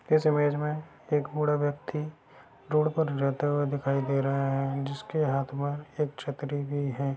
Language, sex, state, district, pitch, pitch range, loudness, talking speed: Hindi, male, Bihar, Darbhanga, 145 Hz, 140-150 Hz, -29 LUFS, 175 wpm